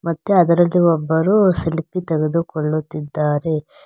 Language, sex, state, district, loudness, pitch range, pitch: Kannada, female, Karnataka, Bangalore, -18 LUFS, 155-175 Hz, 165 Hz